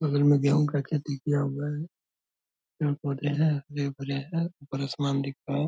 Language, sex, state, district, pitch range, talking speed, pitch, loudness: Hindi, male, Bihar, Purnia, 140-150 Hz, 180 wpm, 145 Hz, -28 LUFS